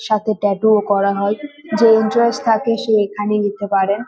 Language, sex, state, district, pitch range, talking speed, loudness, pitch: Bengali, female, West Bengal, North 24 Parganas, 205-225 Hz, 175 wpm, -16 LUFS, 215 Hz